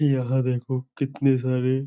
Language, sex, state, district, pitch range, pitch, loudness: Hindi, male, Uttar Pradesh, Budaun, 130-135 Hz, 130 Hz, -24 LUFS